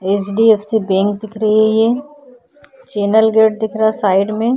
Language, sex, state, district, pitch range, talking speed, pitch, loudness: Hindi, female, Uttar Pradesh, Budaun, 210-230 Hz, 170 wpm, 220 Hz, -14 LUFS